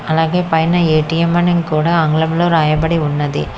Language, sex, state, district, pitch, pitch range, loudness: Telugu, female, Telangana, Hyderabad, 160 Hz, 155-170 Hz, -14 LUFS